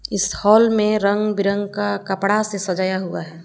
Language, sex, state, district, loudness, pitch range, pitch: Hindi, female, Jharkhand, Palamu, -19 LUFS, 190-210 Hz, 200 Hz